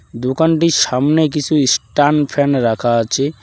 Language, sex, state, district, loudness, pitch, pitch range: Bengali, male, West Bengal, Cooch Behar, -15 LUFS, 145 Hz, 125-150 Hz